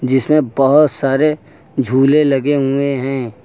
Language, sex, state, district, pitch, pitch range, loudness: Hindi, male, Uttar Pradesh, Lucknow, 135 Hz, 135-145 Hz, -14 LUFS